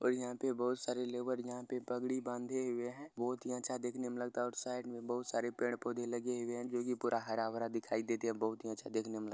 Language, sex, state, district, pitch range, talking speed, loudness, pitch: Bhojpuri, male, Bihar, Saran, 115-125 Hz, 270 wpm, -39 LUFS, 120 Hz